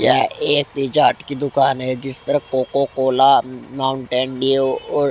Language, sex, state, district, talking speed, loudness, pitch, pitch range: Hindi, male, Haryana, Rohtak, 155 wpm, -18 LUFS, 135 Hz, 130-140 Hz